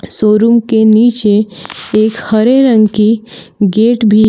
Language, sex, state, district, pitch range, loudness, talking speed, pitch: Hindi, female, Jharkhand, Palamu, 215-230 Hz, -10 LUFS, 125 wpm, 220 Hz